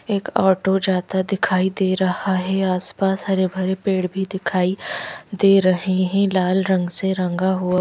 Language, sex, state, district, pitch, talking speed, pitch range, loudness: Hindi, female, Madhya Pradesh, Bhopal, 190 Hz, 160 wpm, 185-195 Hz, -20 LUFS